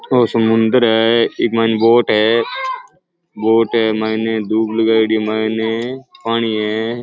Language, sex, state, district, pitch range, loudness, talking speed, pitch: Rajasthani, male, Rajasthan, Churu, 110-120 Hz, -15 LUFS, 135 wpm, 115 Hz